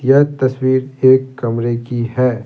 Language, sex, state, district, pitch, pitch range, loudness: Hindi, male, Bihar, Patna, 130 Hz, 120-130 Hz, -15 LUFS